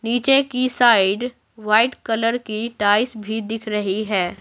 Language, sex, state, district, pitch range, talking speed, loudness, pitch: Hindi, female, Bihar, Patna, 210-245 Hz, 150 wpm, -19 LUFS, 225 Hz